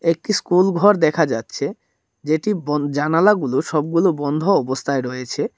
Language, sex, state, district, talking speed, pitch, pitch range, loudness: Bengali, male, Tripura, Dhalai, 120 wpm, 160 Hz, 145-180 Hz, -19 LUFS